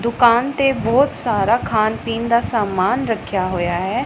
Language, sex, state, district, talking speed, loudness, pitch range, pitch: Punjabi, female, Punjab, Pathankot, 165 wpm, -18 LUFS, 195-245 Hz, 230 Hz